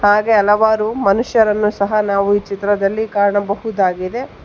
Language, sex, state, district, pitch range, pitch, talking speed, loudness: Kannada, female, Karnataka, Bangalore, 200-220 Hz, 205 Hz, 110 wpm, -16 LUFS